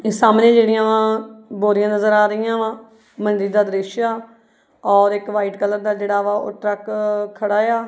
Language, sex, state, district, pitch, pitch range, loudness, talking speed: Punjabi, female, Punjab, Kapurthala, 210 Hz, 205-220 Hz, -18 LUFS, 175 wpm